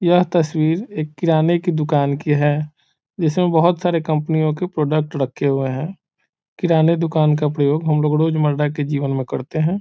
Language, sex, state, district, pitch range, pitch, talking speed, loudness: Hindi, male, Bihar, Saran, 145-165 Hz, 155 Hz, 170 wpm, -18 LUFS